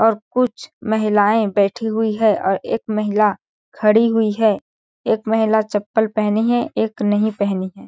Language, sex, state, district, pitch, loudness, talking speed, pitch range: Hindi, female, Chhattisgarh, Balrampur, 215 Hz, -18 LUFS, 160 wpm, 205-225 Hz